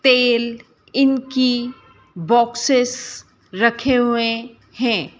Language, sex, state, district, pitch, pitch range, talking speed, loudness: Hindi, female, Madhya Pradesh, Dhar, 240 Hz, 235-255 Hz, 70 wpm, -18 LUFS